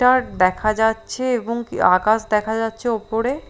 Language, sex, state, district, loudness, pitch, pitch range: Bengali, female, Bihar, Katihar, -20 LUFS, 225 Hz, 215-240 Hz